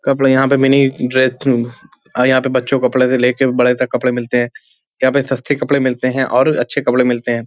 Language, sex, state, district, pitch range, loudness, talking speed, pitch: Hindi, male, Uttar Pradesh, Hamirpur, 125-135 Hz, -15 LUFS, 215 wpm, 130 Hz